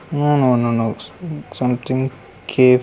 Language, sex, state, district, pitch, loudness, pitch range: Telugu, male, Andhra Pradesh, Krishna, 130 Hz, -18 LUFS, 125-145 Hz